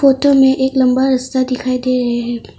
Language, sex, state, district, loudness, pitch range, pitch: Hindi, female, Arunachal Pradesh, Longding, -14 LUFS, 255-265 Hz, 255 Hz